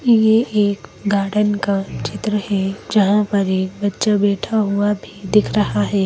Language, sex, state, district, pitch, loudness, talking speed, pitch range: Hindi, female, Madhya Pradesh, Bhopal, 205 Hz, -18 LUFS, 160 wpm, 195-210 Hz